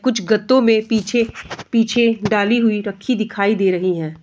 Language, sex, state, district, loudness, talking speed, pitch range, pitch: Hindi, female, Bihar, Bhagalpur, -17 LUFS, 155 wpm, 205-235 Hz, 220 Hz